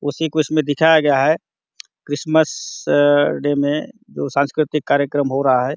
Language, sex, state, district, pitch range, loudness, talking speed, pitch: Hindi, male, Chhattisgarh, Bastar, 140-155 Hz, -18 LUFS, 155 wpm, 145 Hz